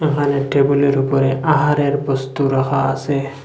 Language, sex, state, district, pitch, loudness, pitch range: Bengali, male, Assam, Hailakandi, 140 Hz, -17 LUFS, 135-145 Hz